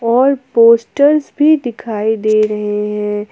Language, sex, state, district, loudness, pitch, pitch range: Hindi, female, Jharkhand, Palamu, -13 LUFS, 230 Hz, 210-260 Hz